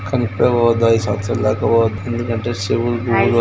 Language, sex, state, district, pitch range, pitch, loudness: Telugu, male, Andhra Pradesh, Srikakulam, 110-120 Hz, 115 Hz, -17 LUFS